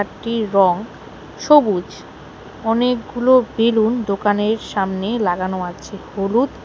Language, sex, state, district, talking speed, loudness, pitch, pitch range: Bengali, female, West Bengal, Alipurduar, 90 wpm, -18 LUFS, 220 Hz, 195-235 Hz